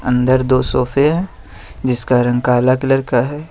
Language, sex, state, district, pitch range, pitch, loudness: Hindi, male, Jharkhand, Ranchi, 120-135 Hz, 125 Hz, -15 LUFS